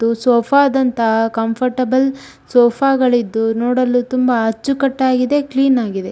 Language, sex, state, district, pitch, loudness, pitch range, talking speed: Kannada, female, Karnataka, Shimoga, 250 Hz, -15 LUFS, 230-265 Hz, 275 wpm